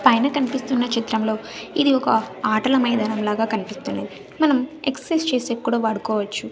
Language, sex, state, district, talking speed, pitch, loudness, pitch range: Telugu, female, Andhra Pradesh, Sri Satya Sai, 130 wpm, 235 Hz, -21 LUFS, 220-265 Hz